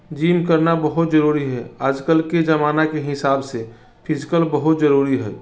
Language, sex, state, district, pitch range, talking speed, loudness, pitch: Bajjika, male, Bihar, Vaishali, 135-160 Hz, 165 wpm, -18 LUFS, 150 Hz